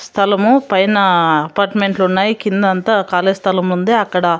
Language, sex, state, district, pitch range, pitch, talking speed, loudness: Telugu, female, Andhra Pradesh, Sri Satya Sai, 180-205 Hz, 195 Hz, 120 wpm, -14 LUFS